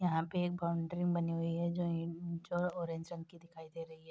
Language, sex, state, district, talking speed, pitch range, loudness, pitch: Hindi, female, Bihar, Bhagalpur, 235 wpm, 165-175 Hz, -38 LUFS, 170 Hz